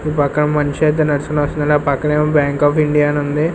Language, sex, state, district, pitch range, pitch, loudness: Telugu, male, Andhra Pradesh, Sri Satya Sai, 145-150 Hz, 150 Hz, -16 LUFS